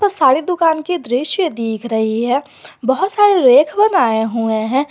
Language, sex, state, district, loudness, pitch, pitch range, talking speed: Hindi, female, Jharkhand, Garhwa, -15 LUFS, 275 Hz, 230-360 Hz, 160 wpm